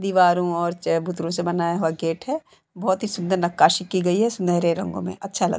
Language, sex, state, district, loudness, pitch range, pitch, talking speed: Hindi, female, Uttar Pradesh, Jalaun, -22 LUFS, 170-190 Hz, 180 Hz, 225 wpm